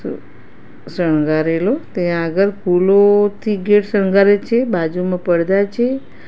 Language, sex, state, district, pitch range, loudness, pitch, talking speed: Gujarati, female, Gujarat, Gandhinagar, 175-205 Hz, -16 LUFS, 195 Hz, 95 wpm